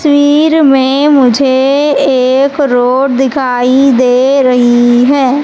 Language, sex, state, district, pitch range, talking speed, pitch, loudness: Hindi, female, Madhya Pradesh, Katni, 255-280 Hz, 100 wpm, 270 Hz, -8 LUFS